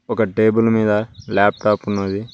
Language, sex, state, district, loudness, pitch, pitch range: Telugu, male, Telangana, Mahabubabad, -18 LUFS, 105 Hz, 100-110 Hz